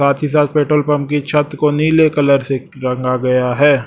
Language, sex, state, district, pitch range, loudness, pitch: Hindi, male, Chhattisgarh, Raipur, 135-150 Hz, -15 LUFS, 145 Hz